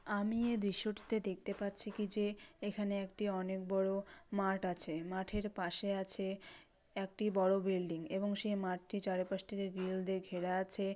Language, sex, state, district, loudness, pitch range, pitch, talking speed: Bengali, female, West Bengal, Dakshin Dinajpur, -38 LUFS, 190-205 Hz, 195 Hz, 155 wpm